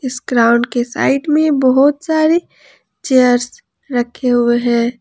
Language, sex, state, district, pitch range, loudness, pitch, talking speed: Hindi, female, Jharkhand, Ranchi, 240-285 Hz, -14 LUFS, 255 Hz, 130 wpm